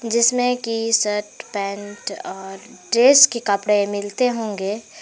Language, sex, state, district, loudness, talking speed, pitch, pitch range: Hindi, female, Jharkhand, Garhwa, -19 LUFS, 120 wpm, 210 Hz, 205-235 Hz